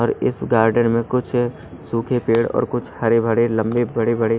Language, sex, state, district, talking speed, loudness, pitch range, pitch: Hindi, male, Odisha, Nuapada, 190 wpm, -19 LUFS, 115-120 Hz, 115 Hz